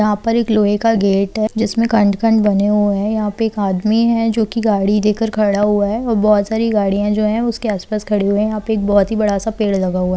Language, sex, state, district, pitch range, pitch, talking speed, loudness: Hindi, female, Bihar, Saran, 205-220 Hz, 210 Hz, 255 wpm, -16 LUFS